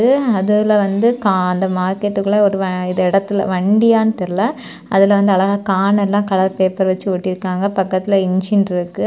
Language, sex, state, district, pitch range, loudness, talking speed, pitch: Tamil, female, Tamil Nadu, Kanyakumari, 185-205 Hz, -16 LUFS, 160 wpm, 195 Hz